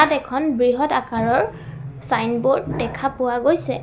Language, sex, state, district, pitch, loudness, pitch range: Assamese, female, Assam, Sonitpur, 250 Hz, -20 LUFS, 225-275 Hz